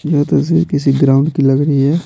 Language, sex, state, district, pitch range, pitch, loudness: Hindi, male, Bihar, Patna, 140-150 Hz, 145 Hz, -13 LUFS